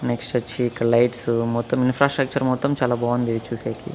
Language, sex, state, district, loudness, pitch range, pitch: Telugu, male, Andhra Pradesh, Annamaya, -22 LUFS, 115-130 Hz, 120 Hz